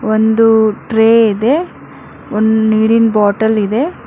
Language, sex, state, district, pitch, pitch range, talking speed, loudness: Kannada, female, Karnataka, Bangalore, 220 Hz, 215-225 Hz, 105 wpm, -12 LUFS